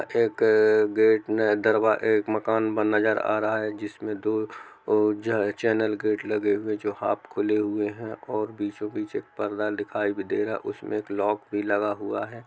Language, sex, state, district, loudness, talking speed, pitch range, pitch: Hindi, male, Jharkhand, Jamtara, -25 LUFS, 190 wpm, 105-110 Hz, 105 Hz